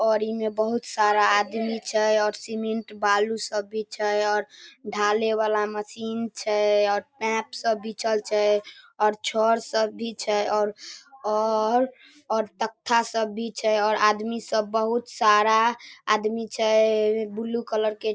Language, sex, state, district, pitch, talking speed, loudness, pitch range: Maithili, female, Bihar, Darbhanga, 220 Hz, 150 wpm, -24 LUFS, 210-225 Hz